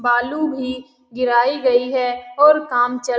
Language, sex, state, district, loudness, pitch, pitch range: Hindi, female, Bihar, Saran, -18 LUFS, 250 Hz, 245-265 Hz